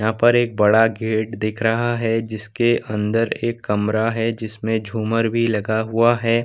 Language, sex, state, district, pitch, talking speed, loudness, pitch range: Hindi, male, Bihar, Samastipur, 115 Hz, 175 wpm, -20 LUFS, 110-115 Hz